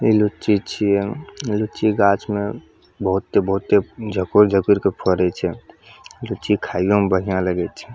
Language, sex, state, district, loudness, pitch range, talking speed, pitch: Maithili, male, Bihar, Samastipur, -20 LUFS, 95-105 Hz, 135 wpm, 100 Hz